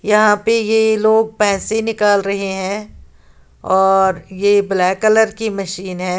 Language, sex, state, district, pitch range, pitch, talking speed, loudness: Hindi, female, Uttar Pradesh, Lalitpur, 190-215 Hz, 200 Hz, 145 wpm, -15 LUFS